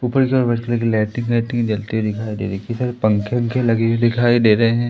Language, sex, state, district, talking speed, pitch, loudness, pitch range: Hindi, male, Madhya Pradesh, Umaria, 270 wpm, 115 Hz, -18 LUFS, 110-120 Hz